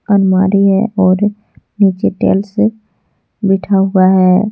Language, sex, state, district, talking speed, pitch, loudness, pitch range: Hindi, female, Jharkhand, Deoghar, 120 wpm, 195 Hz, -12 LUFS, 190-210 Hz